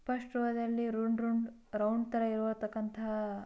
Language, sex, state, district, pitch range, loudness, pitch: Kannada, female, Karnataka, Bijapur, 220-235 Hz, -35 LUFS, 225 Hz